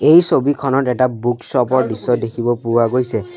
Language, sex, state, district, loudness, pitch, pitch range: Assamese, male, Assam, Sonitpur, -16 LUFS, 125 Hz, 115-135 Hz